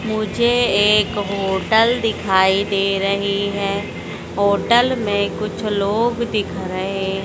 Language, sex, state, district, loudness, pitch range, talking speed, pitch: Hindi, female, Madhya Pradesh, Dhar, -18 LUFS, 195-220 Hz, 110 wpm, 200 Hz